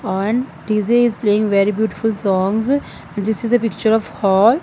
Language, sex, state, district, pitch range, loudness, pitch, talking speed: English, female, Punjab, Fazilka, 200-230 Hz, -17 LUFS, 215 Hz, 180 wpm